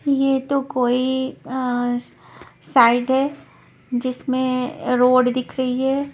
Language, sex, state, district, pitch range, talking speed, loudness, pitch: Hindi, female, Punjab, Pathankot, 250-270 Hz, 125 wpm, -20 LUFS, 255 Hz